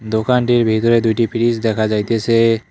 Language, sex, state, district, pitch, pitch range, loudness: Bengali, male, West Bengal, Cooch Behar, 115 Hz, 110-115 Hz, -16 LUFS